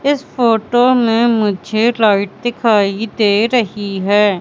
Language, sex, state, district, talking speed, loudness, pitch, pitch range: Hindi, female, Madhya Pradesh, Katni, 120 wpm, -14 LUFS, 220 Hz, 205-240 Hz